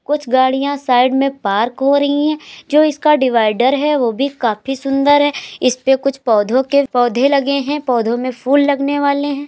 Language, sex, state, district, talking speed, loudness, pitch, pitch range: Hindi, female, Uttar Pradesh, Jalaun, 190 wpm, -15 LUFS, 275 Hz, 250-285 Hz